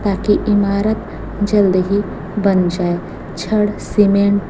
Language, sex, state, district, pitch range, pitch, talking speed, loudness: Hindi, female, Chhattisgarh, Raipur, 190-205 Hz, 200 Hz, 120 wpm, -16 LUFS